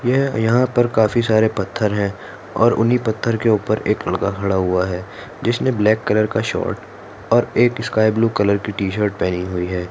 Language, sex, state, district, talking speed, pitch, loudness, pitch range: Hindi, male, Maharashtra, Nagpur, 200 wpm, 110 Hz, -18 LUFS, 100-115 Hz